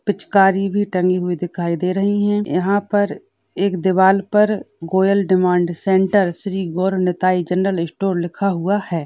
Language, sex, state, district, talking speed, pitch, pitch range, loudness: Hindi, female, Uttar Pradesh, Budaun, 160 wpm, 190 Hz, 180-200 Hz, -18 LUFS